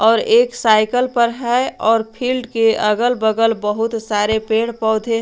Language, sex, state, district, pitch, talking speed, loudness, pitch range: Hindi, female, Jharkhand, Garhwa, 225 Hz, 160 wpm, -16 LUFS, 220-240 Hz